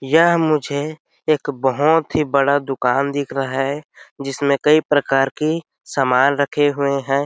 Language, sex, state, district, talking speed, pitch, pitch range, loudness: Hindi, male, Chhattisgarh, Sarguja, 150 wpm, 140 Hz, 135-150 Hz, -18 LUFS